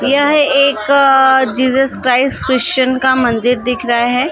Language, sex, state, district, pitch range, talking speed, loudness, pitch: Hindi, female, Maharashtra, Gondia, 250-275 Hz, 165 wpm, -12 LUFS, 260 Hz